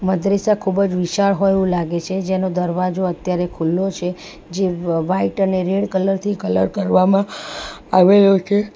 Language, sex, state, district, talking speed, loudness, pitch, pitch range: Gujarati, female, Gujarat, Valsad, 150 wpm, -18 LUFS, 190 Hz, 180-195 Hz